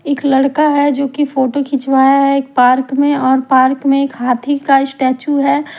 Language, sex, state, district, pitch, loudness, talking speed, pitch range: Hindi, female, Haryana, Rohtak, 275 Hz, -13 LUFS, 195 wpm, 265-285 Hz